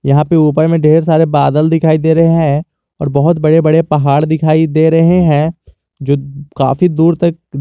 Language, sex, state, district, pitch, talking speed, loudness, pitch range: Hindi, male, Jharkhand, Garhwa, 155 Hz, 195 wpm, -11 LUFS, 145-165 Hz